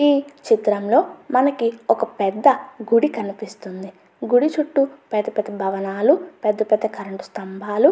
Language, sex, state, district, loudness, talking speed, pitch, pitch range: Telugu, female, Andhra Pradesh, Anantapur, -20 LUFS, 120 wpm, 220 Hz, 200-280 Hz